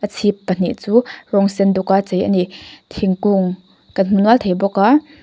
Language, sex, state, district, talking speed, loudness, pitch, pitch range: Mizo, female, Mizoram, Aizawl, 185 wpm, -16 LUFS, 200 Hz, 190-205 Hz